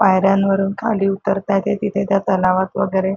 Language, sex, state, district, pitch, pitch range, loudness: Marathi, female, Maharashtra, Chandrapur, 195 Hz, 190-195 Hz, -18 LUFS